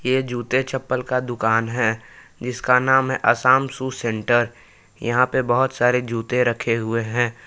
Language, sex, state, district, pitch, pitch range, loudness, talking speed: Hindi, male, Jharkhand, Palamu, 125 Hz, 115-130 Hz, -20 LUFS, 160 wpm